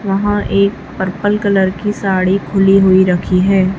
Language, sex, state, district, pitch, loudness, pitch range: Hindi, female, Chhattisgarh, Raipur, 195 Hz, -13 LUFS, 190-200 Hz